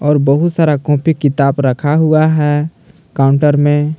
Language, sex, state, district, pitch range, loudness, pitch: Hindi, male, Jharkhand, Palamu, 145-155 Hz, -12 LUFS, 150 Hz